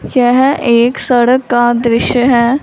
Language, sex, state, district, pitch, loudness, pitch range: Hindi, female, Punjab, Fazilka, 245 Hz, -11 LUFS, 240-255 Hz